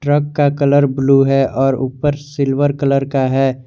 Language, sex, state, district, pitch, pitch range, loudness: Hindi, male, Jharkhand, Garhwa, 140 Hz, 135-145 Hz, -15 LUFS